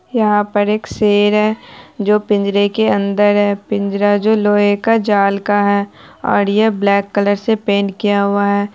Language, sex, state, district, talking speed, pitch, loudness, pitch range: Hindi, female, Bihar, Araria, 180 wpm, 205 Hz, -15 LUFS, 200-210 Hz